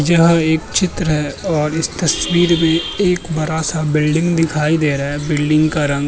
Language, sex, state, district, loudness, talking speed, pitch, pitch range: Hindi, male, Uttar Pradesh, Muzaffarnagar, -16 LUFS, 190 wpm, 155 Hz, 150-165 Hz